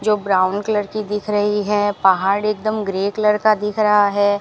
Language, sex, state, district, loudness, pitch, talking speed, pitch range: Hindi, female, Rajasthan, Bikaner, -18 LUFS, 210 Hz, 205 wpm, 200-210 Hz